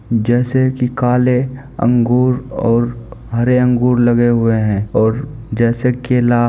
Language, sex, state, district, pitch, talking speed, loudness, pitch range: Maithili, male, Bihar, Supaul, 120 Hz, 130 wpm, -15 LUFS, 115-125 Hz